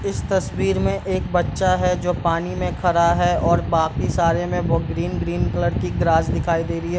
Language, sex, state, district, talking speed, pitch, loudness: Hindi, male, Bihar, East Champaran, 225 wpm, 165 Hz, -20 LUFS